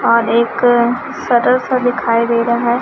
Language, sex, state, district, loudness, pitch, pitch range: Hindi, male, Chhattisgarh, Raipur, -14 LUFS, 240 Hz, 235-245 Hz